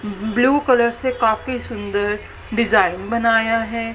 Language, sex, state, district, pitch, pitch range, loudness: Hindi, female, Haryana, Charkhi Dadri, 230 Hz, 215-235 Hz, -19 LUFS